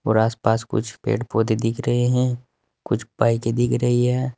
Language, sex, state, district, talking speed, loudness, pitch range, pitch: Hindi, male, Uttar Pradesh, Saharanpur, 190 wpm, -21 LUFS, 115-125 Hz, 120 Hz